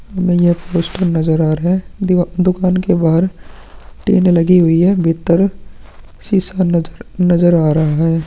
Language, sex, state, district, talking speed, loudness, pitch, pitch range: Hindi, male, Chhattisgarh, Korba, 150 wpm, -14 LUFS, 175 Hz, 165-185 Hz